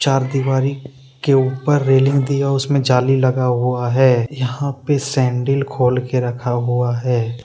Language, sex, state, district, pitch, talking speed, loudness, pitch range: Hindi, male, Jharkhand, Deoghar, 130 Hz, 155 wpm, -17 LUFS, 125-135 Hz